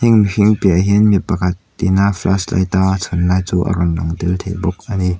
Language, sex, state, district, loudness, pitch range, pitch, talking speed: Mizo, male, Mizoram, Aizawl, -15 LUFS, 90-100 Hz, 95 Hz, 220 wpm